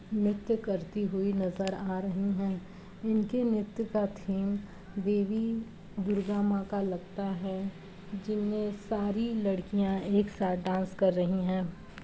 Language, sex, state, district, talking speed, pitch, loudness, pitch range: Hindi, female, Uttar Pradesh, Jalaun, 140 wpm, 200 Hz, -32 LUFS, 190-205 Hz